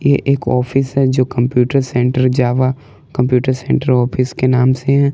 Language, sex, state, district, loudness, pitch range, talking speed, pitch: Hindi, male, Jharkhand, Palamu, -15 LUFS, 125-135 Hz, 175 wpm, 130 Hz